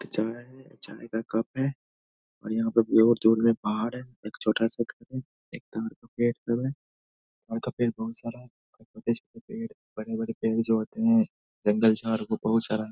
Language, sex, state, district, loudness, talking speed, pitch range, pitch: Hindi, male, Bihar, Saharsa, -28 LUFS, 195 wpm, 110-120 Hz, 115 Hz